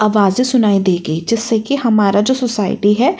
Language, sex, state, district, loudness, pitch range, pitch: Hindi, female, Uttar Pradesh, Jyotiba Phule Nagar, -14 LUFS, 200-240 Hz, 215 Hz